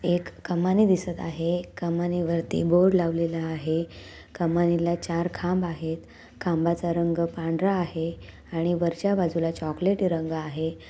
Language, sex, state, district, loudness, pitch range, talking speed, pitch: Marathi, female, Maharashtra, Nagpur, -26 LUFS, 165-175 Hz, 125 wpm, 170 Hz